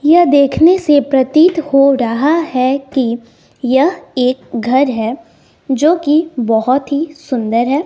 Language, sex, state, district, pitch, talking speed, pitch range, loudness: Hindi, female, Bihar, West Champaran, 275 Hz, 135 wpm, 250-305 Hz, -13 LUFS